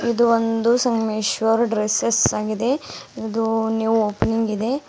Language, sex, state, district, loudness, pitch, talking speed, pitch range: Kannada, female, Karnataka, Bidar, -20 LUFS, 225 Hz, 110 wpm, 220-235 Hz